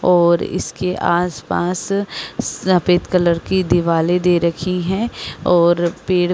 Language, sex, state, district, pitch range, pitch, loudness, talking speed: Hindi, female, Chhattisgarh, Rajnandgaon, 170-180 Hz, 175 Hz, -17 LUFS, 125 wpm